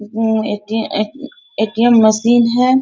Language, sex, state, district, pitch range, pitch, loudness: Hindi, female, Bihar, Bhagalpur, 215-250 Hz, 225 Hz, -15 LUFS